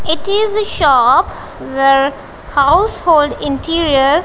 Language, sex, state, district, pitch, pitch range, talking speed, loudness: English, female, Punjab, Kapurthala, 320 Hz, 275-360 Hz, 100 wpm, -13 LUFS